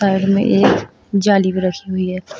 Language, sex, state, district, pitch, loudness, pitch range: Hindi, female, Uttar Pradesh, Shamli, 190 Hz, -16 LUFS, 185-200 Hz